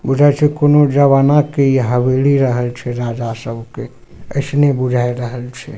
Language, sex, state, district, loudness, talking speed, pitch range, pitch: Maithili, male, Bihar, Supaul, -14 LUFS, 175 wpm, 125-140 Hz, 130 Hz